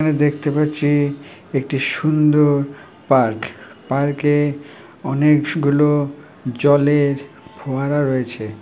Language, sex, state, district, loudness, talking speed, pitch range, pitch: Bengali, female, West Bengal, Malda, -18 LUFS, 90 wpm, 135-150 Hz, 145 Hz